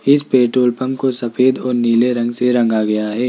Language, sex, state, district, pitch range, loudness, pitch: Hindi, male, Rajasthan, Jaipur, 120-130 Hz, -16 LUFS, 125 Hz